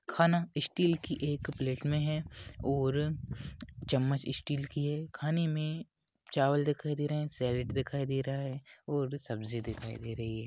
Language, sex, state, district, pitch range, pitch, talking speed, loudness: Hindi, male, Maharashtra, Pune, 130-150 Hz, 140 Hz, 170 wpm, -34 LUFS